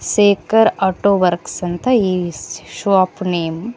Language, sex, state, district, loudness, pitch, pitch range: Kannada, female, Karnataka, Koppal, -16 LUFS, 190 Hz, 175-205 Hz